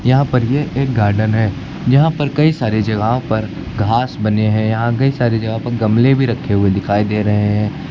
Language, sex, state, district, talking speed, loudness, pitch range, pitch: Hindi, male, Uttar Pradesh, Lucknow, 210 wpm, -16 LUFS, 105-135 Hz, 115 Hz